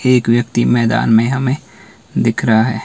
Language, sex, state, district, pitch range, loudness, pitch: Hindi, male, Himachal Pradesh, Shimla, 115-125 Hz, -15 LUFS, 120 Hz